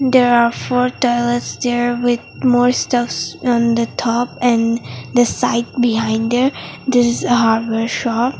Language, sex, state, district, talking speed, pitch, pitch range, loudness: English, female, Mizoram, Aizawl, 145 wpm, 240 Hz, 235-245 Hz, -16 LUFS